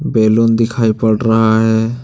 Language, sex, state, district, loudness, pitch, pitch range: Hindi, male, Jharkhand, Deoghar, -13 LUFS, 115 Hz, 110-115 Hz